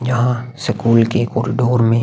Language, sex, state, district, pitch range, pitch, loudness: Hindi, male, Chhattisgarh, Sukma, 115-125 Hz, 120 Hz, -16 LUFS